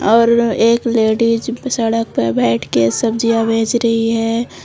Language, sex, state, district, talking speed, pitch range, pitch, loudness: Hindi, female, Jharkhand, Palamu, 130 wpm, 225-230 Hz, 230 Hz, -15 LUFS